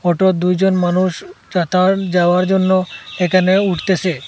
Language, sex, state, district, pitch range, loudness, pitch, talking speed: Bengali, male, Assam, Hailakandi, 180-190 Hz, -15 LUFS, 185 Hz, 110 wpm